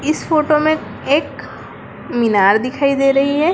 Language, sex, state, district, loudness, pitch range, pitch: Hindi, female, Bihar, Sitamarhi, -15 LUFS, 255-305 Hz, 280 Hz